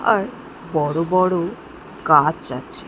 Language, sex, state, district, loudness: Bengali, female, West Bengal, Jhargram, -19 LUFS